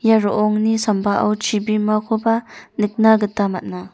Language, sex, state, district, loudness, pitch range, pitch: Garo, female, Meghalaya, North Garo Hills, -18 LUFS, 210-220 Hz, 215 Hz